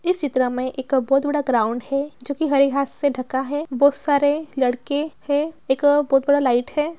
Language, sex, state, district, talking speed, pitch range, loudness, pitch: Hindi, female, Bihar, Gaya, 205 wpm, 265-290 Hz, -20 LUFS, 280 Hz